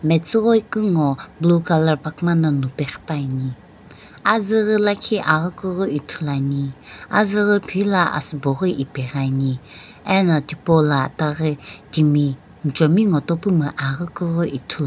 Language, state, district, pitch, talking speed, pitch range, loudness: Sumi, Nagaland, Dimapur, 155 Hz, 120 wpm, 140-185 Hz, -19 LUFS